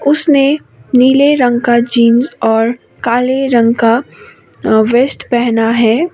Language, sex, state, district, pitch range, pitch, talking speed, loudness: Hindi, female, Sikkim, Gangtok, 230-270 Hz, 240 Hz, 125 wpm, -11 LUFS